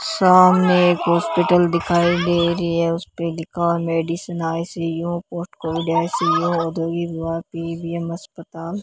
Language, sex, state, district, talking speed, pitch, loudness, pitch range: Hindi, female, Rajasthan, Bikaner, 120 wpm, 170 Hz, -19 LUFS, 165-175 Hz